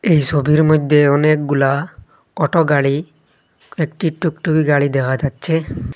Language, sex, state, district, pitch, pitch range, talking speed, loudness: Bengali, male, Assam, Hailakandi, 150 Hz, 140-160 Hz, 110 wpm, -16 LUFS